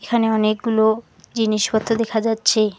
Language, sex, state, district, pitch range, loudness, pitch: Bengali, female, West Bengal, Alipurduar, 215-225 Hz, -19 LUFS, 220 Hz